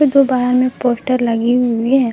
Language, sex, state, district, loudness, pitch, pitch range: Hindi, female, Jharkhand, Palamu, -15 LUFS, 250 Hz, 240-255 Hz